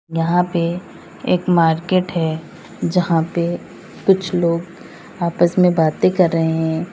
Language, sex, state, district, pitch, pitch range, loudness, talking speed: Hindi, female, Uttar Pradesh, Saharanpur, 170 Hz, 165-180 Hz, -18 LUFS, 130 wpm